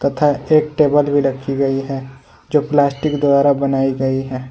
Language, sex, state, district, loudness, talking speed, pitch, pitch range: Hindi, male, Jharkhand, Ranchi, -16 LUFS, 175 wpm, 140 Hz, 135-145 Hz